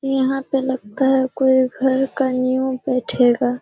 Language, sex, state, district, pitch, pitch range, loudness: Hindi, female, Bihar, Kishanganj, 260 Hz, 255-265 Hz, -19 LUFS